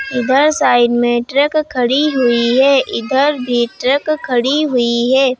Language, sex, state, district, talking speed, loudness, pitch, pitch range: Hindi, female, Uttar Pradesh, Lucknow, 145 wpm, -14 LUFS, 260 Hz, 245-285 Hz